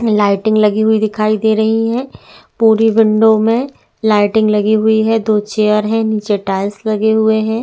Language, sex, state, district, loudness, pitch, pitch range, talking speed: Hindi, female, Uttarakhand, Tehri Garhwal, -13 LUFS, 220 Hz, 215-220 Hz, 175 wpm